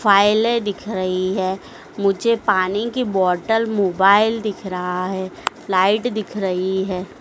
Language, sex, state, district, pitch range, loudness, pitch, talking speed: Hindi, female, Madhya Pradesh, Dhar, 185-215 Hz, -19 LUFS, 195 Hz, 135 wpm